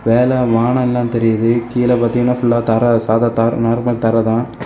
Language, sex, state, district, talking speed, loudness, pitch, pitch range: Tamil, male, Tamil Nadu, Kanyakumari, 165 wpm, -15 LUFS, 120 Hz, 115-120 Hz